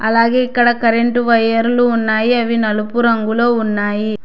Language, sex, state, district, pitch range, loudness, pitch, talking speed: Telugu, female, Telangana, Hyderabad, 220-240 Hz, -14 LUFS, 230 Hz, 125 wpm